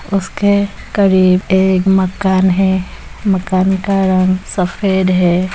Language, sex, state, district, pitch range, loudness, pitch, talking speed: Hindi, female, Bihar, Madhepura, 185-195 Hz, -14 LUFS, 190 Hz, 110 wpm